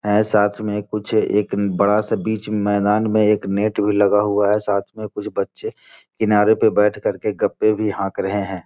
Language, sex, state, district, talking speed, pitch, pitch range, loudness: Hindi, male, Bihar, Gopalganj, 210 wpm, 105 Hz, 100-105 Hz, -19 LUFS